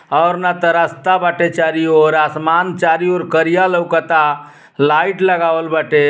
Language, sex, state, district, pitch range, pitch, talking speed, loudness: Bhojpuri, male, Uttar Pradesh, Ghazipur, 155-175 Hz, 165 Hz, 150 wpm, -14 LUFS